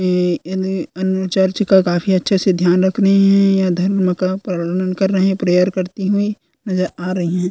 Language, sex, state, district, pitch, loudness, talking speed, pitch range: Hindi, female, Chhattisgarh, Korba, 190 Hz, -16 LUFS, 150 wpm, 180-195 Hz